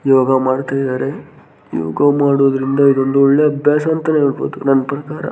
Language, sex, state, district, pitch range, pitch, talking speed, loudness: Kannada, male, Karnataka, Gulbarga, 135-145 Hz, 140 Hz, 135 wpm, -15 LUFS